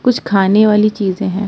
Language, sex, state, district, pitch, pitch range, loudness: Hindi, female, Uttar Pradesh, Muzaffarnagar, 205 Hz, 195-215 Hz, -13 LUFS